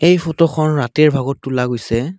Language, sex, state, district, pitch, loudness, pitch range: Assamese, male, Assam, Kamrup Metropolitan, 150 Hz, -16 LUFS, 125-160 Hz